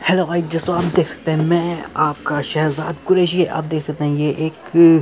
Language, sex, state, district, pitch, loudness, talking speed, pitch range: Hindi, male, Uttar Pradesh, Muzaffarnagar, 160 Hz, -17 LUFS, 215 wpm, 155-170 Hz